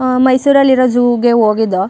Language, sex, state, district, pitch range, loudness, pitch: Kannada, female, Karnataka, Chamarajanagar, 225-260 Hz, -11 LUFS, 245 Hz